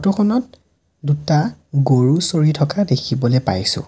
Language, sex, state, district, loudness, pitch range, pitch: Assamese, male, Assam, Sonitpur, -17 LUFS, 130-175 Hz, 150 Hz